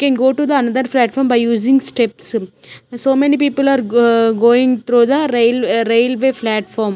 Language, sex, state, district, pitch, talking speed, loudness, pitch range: English, female, Chandigarh, Chandigarh, 245 Hz, 190 wpm, -14 LUFS, 230-270 Hz